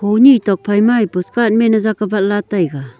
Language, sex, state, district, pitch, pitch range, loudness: Wancho, female, Arunachal Pradesh, Longding, 210 Hz, 195-225 Hz, -14 LUFS